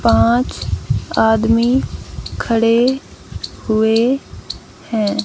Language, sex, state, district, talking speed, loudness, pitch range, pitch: Hindi, female, Haryana, Jhajjar, 55 wpm, -16 LUFS, 220-240 Hz, 230 Hz